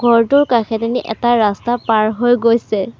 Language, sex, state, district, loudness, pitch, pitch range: Assamese, female, Assam, Sonitpur, -15 LUFS, 230 Hz, 220-240 Hz